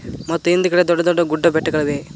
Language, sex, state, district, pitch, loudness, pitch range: Kannada, male, Karnataka, Koppal, 165 Hz, -17 LUFS, 155-175 Hz